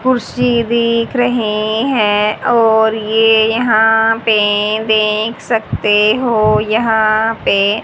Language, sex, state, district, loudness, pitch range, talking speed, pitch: Hindi, female, Haryana, Charkhi Dadri, -13 LUFS, 215-230 Hz, 100 wpm, 220 Hz